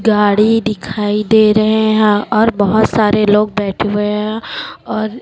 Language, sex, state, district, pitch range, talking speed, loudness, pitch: Hindi, female, Chhattisgarh, Raipur, 210-220 Hz, 150 wpm, -13 LUFS, 215 Hz